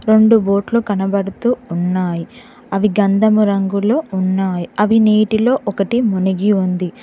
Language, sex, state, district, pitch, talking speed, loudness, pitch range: Telugu, female, Telangana, Mahabubabad, 205 Hz, 110 wpm, -16 LUFS, 190-220 Hz